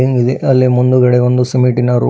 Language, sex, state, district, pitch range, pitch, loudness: Kannada, female, Karnataka, Bidar, 125-130 Hz, 125 Hz, -12 LUFS